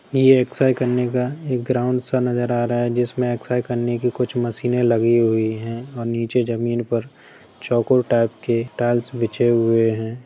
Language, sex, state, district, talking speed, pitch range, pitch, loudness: Hindi, male, Bihar, Sitamarhi, 185 wpm, 115-125 Hz, 120 Hz, -20 LUFS